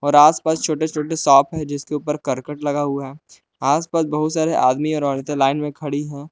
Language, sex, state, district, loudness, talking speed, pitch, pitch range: Hindi, male, Jharkhand, Palamu, -19 LUFS, 210 wpm, 150 Hz, 140-155 Hz